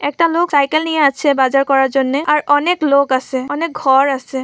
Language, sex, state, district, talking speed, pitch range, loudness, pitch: Bengali, female, West Bengal, Purulia, 200 wpm, 270-305 Hz, -14 LUFS, 280 Hz